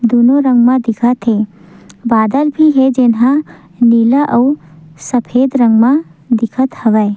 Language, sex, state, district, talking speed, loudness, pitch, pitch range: Chhattisgarhi, female, Chhattisgarh, Sukma, 140 wpm, -12 LUFS, 240 Hz, 220-260 Hz